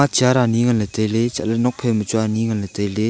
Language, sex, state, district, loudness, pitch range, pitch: Wancho, male, Arunachal Pradesh, Longding, -19 LUFS, 110-120 Hz, 115 Hz